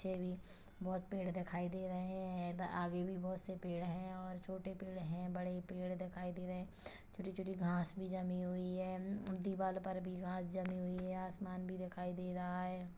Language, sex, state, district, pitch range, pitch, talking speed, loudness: Hindi, female, Chhattisgarh, Kabirdham, 180-185 Hz, 185 Hz, 200 wpm, -44 LUFS